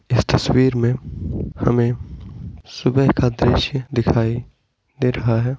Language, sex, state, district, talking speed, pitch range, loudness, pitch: Hindi, male, Uttar Pradesh, Muzaffarnagar, 120 wpm, 115-130 Hz, -19 LUFS, 120 Hz